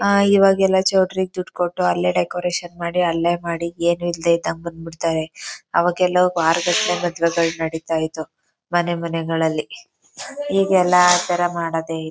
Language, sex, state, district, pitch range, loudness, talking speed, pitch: Kannada, female, Karnataka, Chamarajanagar, 165-180 Hz, -19 LUFS, 135 wpm, 175 Hz